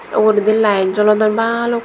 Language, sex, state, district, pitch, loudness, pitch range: Chakma, female, Tripura, Dhalai, 215 Hz, -14 LUFS, 210-230 Hz